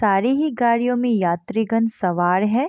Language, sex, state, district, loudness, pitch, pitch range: Hindi, female, Bihar, East Champaran, -20 LUFS, 225 Hz, 195-245 Hz